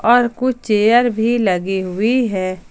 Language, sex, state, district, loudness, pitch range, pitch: Hindi, male, Jharkhand, Ranchi, -16 LUFS, 190-240 Hz, 225 Hz